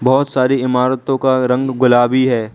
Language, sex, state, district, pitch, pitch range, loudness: Hindi, male, Arunachal Pradesh, Lower Dibang Valley, 130 Hz, 125-130 Hz, -14 LUFS